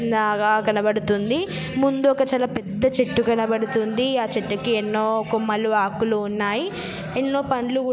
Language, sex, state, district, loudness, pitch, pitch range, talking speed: Telugu, female, Telangana, Nalgonda, -22 LUFS, 225 Hz, 215-255 Hz, 135 wpm